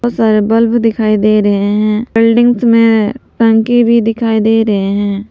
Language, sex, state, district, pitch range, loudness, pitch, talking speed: Hindi, female, Jharkhand, Palamu, 215-230 Hz, -11 LUFS, 225 Hz, 170 wpm